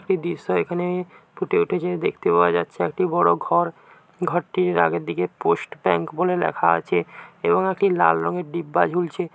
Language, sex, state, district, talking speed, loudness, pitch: Bengali, male, West Bengal, Paschim Medinipur, 160 wpm, -22 LUFS, 170 Hz